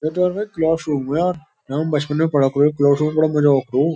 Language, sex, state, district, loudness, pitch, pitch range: Hindi, male, Uttar Pradesh, Jyotiba Phule Nagar, -18 LUFS, 150 Hz, 145-160 Hz